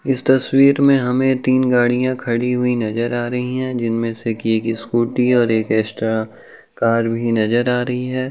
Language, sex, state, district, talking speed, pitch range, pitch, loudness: Hindi, male, Uttar Pradesh, Jyotiba Phule Nagar, 180 wpm, 115-130 Hz, 120 Hz, -17 LUFS